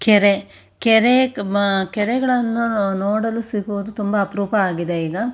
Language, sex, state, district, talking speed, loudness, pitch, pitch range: Kannada, female, Karnataka, Shimoga, 110 wpm, -18 LUFS, 205 Hz, 200-230 Hz